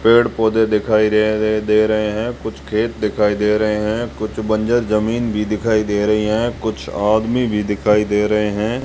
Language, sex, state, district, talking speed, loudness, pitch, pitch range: Hindi, male, Rajasthan, Jaisalmer, 185 wpm, -17 LUFS, 110 Hz, 105-110 Hz